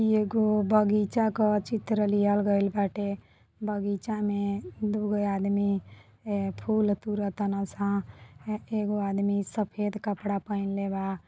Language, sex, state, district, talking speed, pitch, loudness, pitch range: Bhojpuri, female, Uttar Pradesh, Deoria, 115 wpm, 205 Hz, -28 LUFS, 200-210 Hz